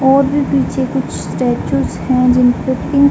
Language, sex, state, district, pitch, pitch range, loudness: Hindi, female, Uttar Pradesh, Varanasi, 265 Hz, 255-275 Hz, -15 LUFS